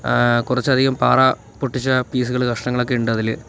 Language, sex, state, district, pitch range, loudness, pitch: Malayalam, male, Kerala, Kollam, 120-130 Hz, -18 LUFS, 125 Hz